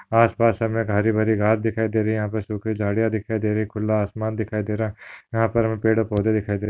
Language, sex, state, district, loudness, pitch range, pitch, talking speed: Hindi, male, Maharashtra, Solapur, -22 LUFS, 105-110 Hz, 110 Hz, 285 wpm